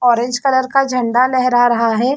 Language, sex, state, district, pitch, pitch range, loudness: Hindi, female, Chhattisgarh, Bastar, 250 Hz, 240-260 Hz, -14 LUFS